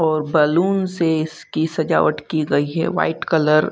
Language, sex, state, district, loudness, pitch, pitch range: Hindi, male, Bihar, Begusarai, -19 LUFS, 160 Hz, 155-165 Hz